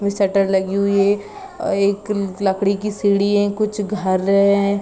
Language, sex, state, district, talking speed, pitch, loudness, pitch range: Hindi, female, Jharkhand, Sahebganj, 200 wpm, 200 Hz, -18 LUFS, 195-205 Hz